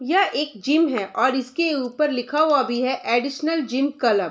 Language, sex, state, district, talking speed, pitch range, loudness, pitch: Hindi, female, Bihar, Vaishali, 210 wpm, 250-310 Hz, -21 LUFS, 275 Hz